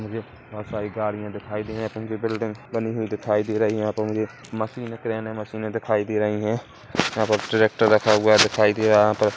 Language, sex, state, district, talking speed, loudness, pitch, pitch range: Hindi, male, Chhattisgarh, Kabirdham, 230 wpm, -23 LUFS, 110 Hz, 105-110 Hz